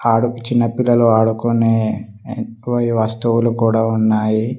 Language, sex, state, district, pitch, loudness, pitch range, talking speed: Telugu, male, Telangana, Mahabubabad, 115 Hz, -16 LUFS, 110-120 Hz, 90 wpm